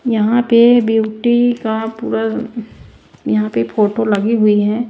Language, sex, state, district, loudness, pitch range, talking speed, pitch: Hindi, female, Bihar, West Champaran, -14 LUFS, 210-235 Hz, 135 wpm, 225 Hz